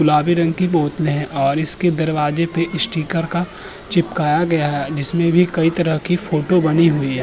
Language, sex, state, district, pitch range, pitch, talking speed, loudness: Hindi, male, Uttar Pradesh, Budaun, 150-175 Hz, 165 Hz, 175 wpm, -17 LUFS